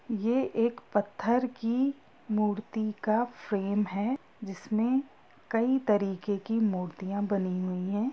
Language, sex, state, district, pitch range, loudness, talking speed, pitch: Hindi, female, Bihar, Gopalganj, 200-240 Hz, -30 LUFS, 120 wpm, 215 Hz